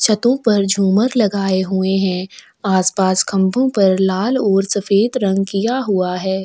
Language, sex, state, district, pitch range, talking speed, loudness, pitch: Hindi, female, Chhattisgarh, Sukma, 190-215 Hz, 160 wpm, -16 LUFS, 195 Hz